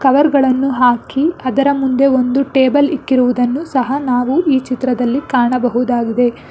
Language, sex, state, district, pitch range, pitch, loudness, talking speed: Kannada, female, Karnataka, Bangalore, 250-275 Hz, 260 Hz, -14 LUFS, 120 wpm